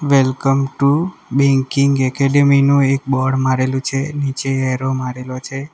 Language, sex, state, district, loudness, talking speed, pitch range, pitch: Gujarati, male, Gujarat, Valsad, -16 LUFS, 135 wpm, 130-140 Hz, 135 Hz